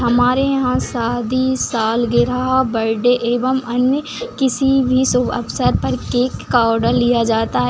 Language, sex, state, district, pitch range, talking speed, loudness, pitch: Hindi, female, Bihar, Madhepura, 235-260 Hz, 140 wpm, -17 LUFS, 245 Hz